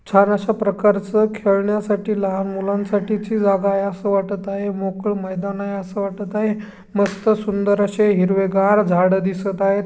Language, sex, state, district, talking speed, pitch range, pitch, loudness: Marathi, female, Maharashtra, Chandrapur, 150 wpm, 195-210 Hz, 200 Hz, -19 LUFS